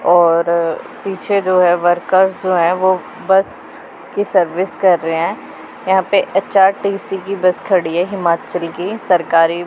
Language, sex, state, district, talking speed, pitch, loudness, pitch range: Hindi, female, Punjab, Pathankot, 150 wpm, 185 Hz, -15 LUFS, 175-195 Hz